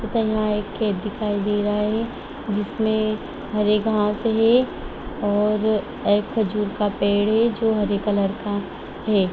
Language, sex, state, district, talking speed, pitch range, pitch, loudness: Hindi, female, Bihar, Sitamarhi, 150 wpm, 205-220 Hz, 210 Hz, -22 LUFS